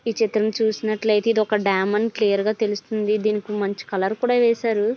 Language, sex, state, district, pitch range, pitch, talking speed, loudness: Telugu, female, Andhra Pradesh, Visakhapatnam, 210-220 Hz, 215 Hz, 315 wpm, -21 LUFS